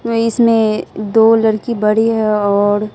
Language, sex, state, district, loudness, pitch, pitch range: Hindi, female, Bihar, West Champaran, -14 LUFS, 220 Hz, 210-230 Hz